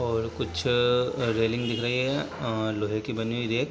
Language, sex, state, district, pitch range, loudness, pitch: Hindi, male, Bihar, Sitamarhi, 115-120 Hz, -27 LUFS, 115 Hz